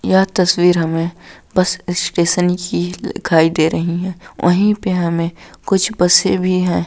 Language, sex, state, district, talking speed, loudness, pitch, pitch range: Hindi, female, Bihar, Araria, 150 wpm, -16 LUFS, 180 Hz, 170-185 Hz